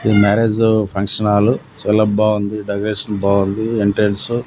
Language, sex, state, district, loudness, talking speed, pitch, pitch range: Telugu, male, Andhra Pradesh, Sri Satya Sai, -16 LUFS, 135 wpm, 105 Hz, 100-110 Hz